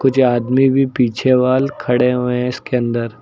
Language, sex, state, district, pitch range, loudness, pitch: Hindi, male, Uttar Pradesh, Lucknow, 125-130 Hz, -16 LUFS, 125 Hz